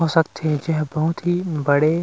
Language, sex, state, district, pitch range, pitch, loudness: Chhattisgarhi, male, Chhattisgarh, Rajnandgaon, 155-165 Hz, 160 Hz, -21 LUFS